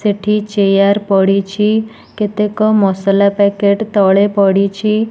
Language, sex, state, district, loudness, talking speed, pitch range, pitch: Odia, female, Odisha, Nuapada, -13 LUFS, 95 wpm, 195-210 Hz, 200 Hz